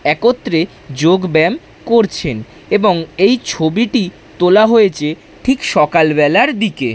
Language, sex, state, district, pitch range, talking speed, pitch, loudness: Bengali, male, West Bengal, Dakshin Dinajpur, 155-225 Hz, 105 wpm, 185 Hz, -13 LUFS